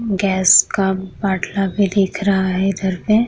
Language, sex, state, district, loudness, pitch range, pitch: Hindi, female, Bihar, Vaishali, -17 LUFS, 190-200 Hz, 195 Hz